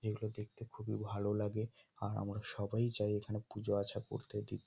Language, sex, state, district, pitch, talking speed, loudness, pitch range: Bengali, male, West Bengal, Kolkata, 105 Hz, 180 wpm, -40 LUFS, 105-110 Hz